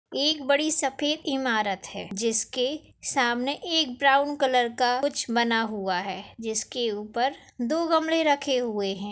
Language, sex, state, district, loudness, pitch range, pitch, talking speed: Hindi, female, Maharashtra, Nagpur, -25 LUFS, 225-285 Hz, 255 Hz, 145 wpm